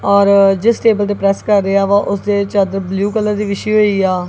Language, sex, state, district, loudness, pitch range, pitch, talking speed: Punjabi, female, Punjab, Kapurthala, -14 LUFS, 195-210 Hz, 200 Hz, 235 wpm